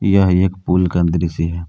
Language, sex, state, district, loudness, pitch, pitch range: Hindi, male, Jharkhand, Palamu, -16 LUFS, 90 Hz, 85-95 Hz